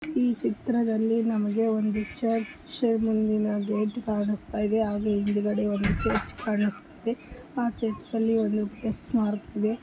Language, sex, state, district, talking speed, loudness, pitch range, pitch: Kannada, female, Karnataka, Bellary, 130 wpm, -27 LUFS, 210-230 Hz, 220 Hz